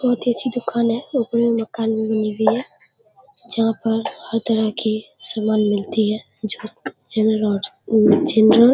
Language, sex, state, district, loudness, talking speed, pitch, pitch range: Hindi, female, Bihar, Darbhanga, -20 LUFS, 135 wpm, 225 Hz, 215-235 Hz